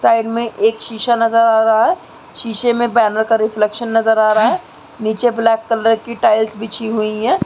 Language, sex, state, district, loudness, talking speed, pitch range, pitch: Hindi, female, Uttar Pradesh, Muzaffarnagar, -15 LUFS, 200 wpm, 220-235 Hz, 225 Hz